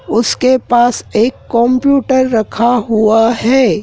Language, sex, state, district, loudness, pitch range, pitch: Hindi, male, Madhya Pradesh, Dhar, -12 LUFS, 225-255 Hz, 240 Hz